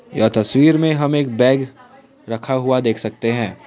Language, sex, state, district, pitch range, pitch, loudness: Hindi, male, Assam, Kamrup Metropolitan, 115-145 Hz, 130 Hz, -17 LUFS